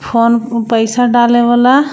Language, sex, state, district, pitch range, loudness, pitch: Bhojpuri, female, Jharkhand, Palamu, 230-245 Hz, -11 LUFS, 240 Hz